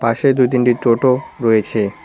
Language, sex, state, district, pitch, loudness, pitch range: Bengali, male, West Bengal, Cooch Behar, 125 Hz, -15 LUFS, 115-130 Hz